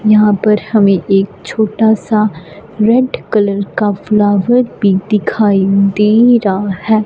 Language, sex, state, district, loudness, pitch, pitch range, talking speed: Hindi, female, Punjab, Fazilka, -12 LUFS, 210 Hz, 200-220 Hz, 125 wpm